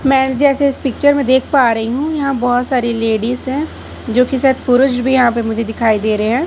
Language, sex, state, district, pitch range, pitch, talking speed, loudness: Hindi, female, Chhattisgarh, Raipur, 235-270 Hz, 255 Hz, 230 wpm, -14 LUFS